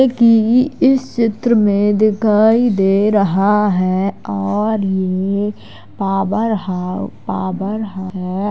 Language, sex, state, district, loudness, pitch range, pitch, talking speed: Hindi, female, Uttar Pradesh, Jalaun, -16 LUFS, 190-220 Hz, 205 Hz, 100 wpm